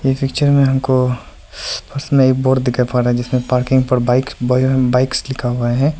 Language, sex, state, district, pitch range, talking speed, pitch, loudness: Hindi, male, Arunachal Pradesh, Lower Dibang Valley, 125-135 Hz, 190 wpm, 130 Hz, -16 LUFS